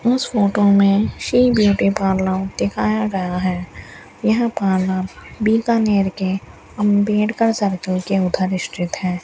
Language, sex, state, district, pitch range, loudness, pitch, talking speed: Hindi, female, Rajasthan, Bikaner, 185-210 Hz, -18 LUFS, 195 Hz, 125 wpm